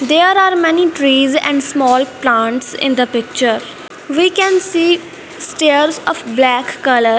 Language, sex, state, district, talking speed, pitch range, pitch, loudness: English, female, Punjab, Fazilka, 140 wpm, 250-335 Hz, 280 Hz, -13 LUFS